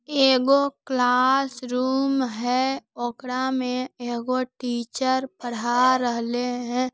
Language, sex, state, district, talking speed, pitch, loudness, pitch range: Hindi, female, Bihar, Lakhisarai, 85 wpm, 255 Hz, -23 LUFS, 245-265 Hz